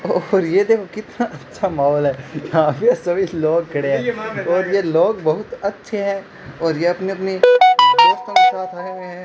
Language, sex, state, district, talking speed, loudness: Hindi, male, Rajasthan, Bikaner, 190 wpm, -17 LUFS